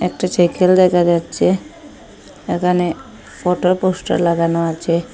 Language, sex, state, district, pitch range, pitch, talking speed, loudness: Bengali, female, Assam, Hailakandi, 170-180 Hz, 180 Hz, 105 wpm, -16 LUFS